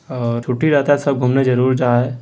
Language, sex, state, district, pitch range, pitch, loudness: Hindi, male, Bihar, Jamui, 125-140 Hz, 130 Hz, -16 LUFS